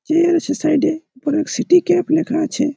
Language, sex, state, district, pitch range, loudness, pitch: Bengali, male, West Bengal, Malda, 290-330 Hz, -17 LUFS, 315 Hz